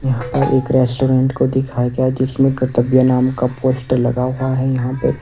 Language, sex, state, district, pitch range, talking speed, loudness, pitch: Hindi, male, Odisha, Nuapada, 125-130 Hz, 205 wpm, -16 LUFS, 130 Hz